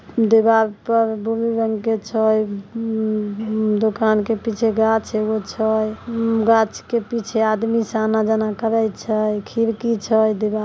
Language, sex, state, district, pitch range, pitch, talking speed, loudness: Maithili, female, Bihar, Samastipur, 215-225 Hz, 220 Hz, 145 wpm, -19 LUFS